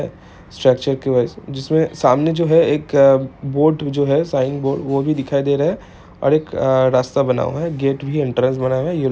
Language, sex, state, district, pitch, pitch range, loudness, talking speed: Hindi, male, Chhattisgarh, Bilaspur, 140 Hz, 130-150 Hz, -17 LUFS, 185 wpm